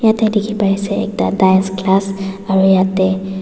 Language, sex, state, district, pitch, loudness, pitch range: Nagamese, female, Nagaland, Dimapur, 195 Hz, -15 LUFS, 190-205 Hz